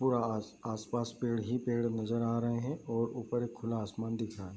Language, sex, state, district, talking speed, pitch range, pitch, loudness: Hindi, male, Bihar, Bhagalpur, 225 wpm, 110-120 Hz, 115 Hz, -35 LUFS